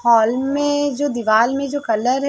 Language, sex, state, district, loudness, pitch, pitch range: Hindi, female, Uttar Pradesh, Varanasi, -18 LUFS, 265 Hz, 235-285 Hz